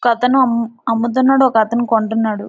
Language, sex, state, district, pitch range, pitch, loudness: Telugu, female, Andhra Pradesh, Visakhapatnam, 225-255 Hz, 235 Hz, -15 LUFS